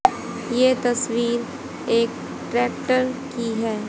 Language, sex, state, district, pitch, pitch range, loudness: Hindi, female, Haryana, Jhajjar, 240 Hz, 235-255 Hz, -23 LUFS